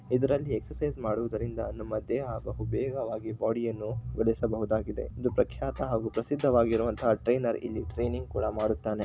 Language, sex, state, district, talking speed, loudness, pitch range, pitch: Kannada, male, Karnataka, Shimoga, 115 wpm, -30 LUFS, 110-120 Hz, 115 Hz